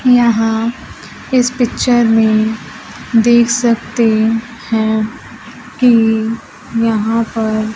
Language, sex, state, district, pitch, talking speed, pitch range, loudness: Hindi, female, Bihar, Kaimur, 225 Hz, 75 wpm, 220-235 Hz, -14 LUFS